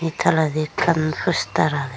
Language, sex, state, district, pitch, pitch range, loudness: Chakma, female, Tripura, Dhalai, 155 Hz, 150-165 Hz, -20 LUFS